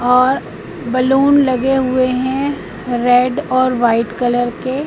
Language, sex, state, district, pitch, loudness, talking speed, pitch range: Hindi, female, Madhya Pradesh, Katni, 255 Hz, -15 LUFS, 125 wpm, 245-265 Hz